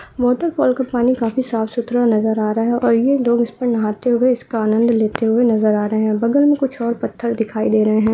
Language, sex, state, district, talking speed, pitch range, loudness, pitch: Hindi, female, Bihar, Saharsa, 235 wpm, 220-245 Hz, -17 LUFS, 235 Hz